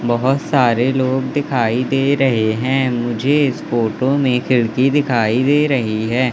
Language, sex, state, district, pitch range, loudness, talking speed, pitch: Hindi, male, Madhya Pradesh, Katni, 120-135 Hz, -16 LUFS, 150 wpm, 130 Hz